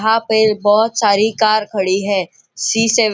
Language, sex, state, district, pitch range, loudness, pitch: Hindi, male, Maharashtra, Nagpur, 205-225 Hz, -15 LUFS, 215 Hz